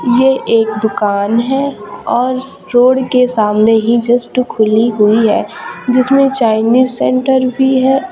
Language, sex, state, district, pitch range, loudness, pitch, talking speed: Hindi, female, Chhattisgarh, Raipur, 220-260 Hz, -12 LUFS, 245 Hz, 135 wpm